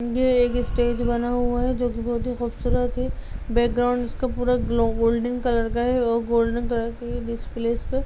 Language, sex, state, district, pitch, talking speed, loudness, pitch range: Hindi, female, Uttar Pradesh, Budaun, 240 Hz, 215 wpm, -24 LUFS, 235-245 Hz